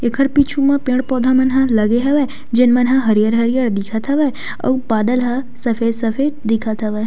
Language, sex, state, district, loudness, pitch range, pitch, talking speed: Chhattisgarhi, female, Chhattisgarh, Sukma, -16 LUFS, 225-265 Hz, 250 Hz, 170 wpm